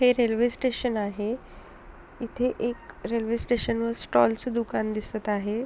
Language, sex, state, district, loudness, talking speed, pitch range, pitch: Marathi, female, Maharashtra, Sindhudurg, -27 LUFS, 140 wpm, 215-245 Hz, 230 Hz